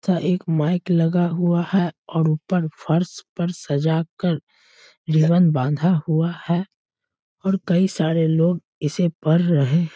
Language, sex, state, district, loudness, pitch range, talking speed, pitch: Hindi, male, Bihar, Sitamarhi, -21 LUFS, 160-175 Hz, 140 wpm, 170 Hz